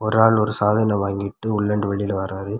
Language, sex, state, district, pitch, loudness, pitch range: Tamil, male, Tamil Nadu, Kanyakumari, 105 Hz, -21 LUFS, 100-110 Hz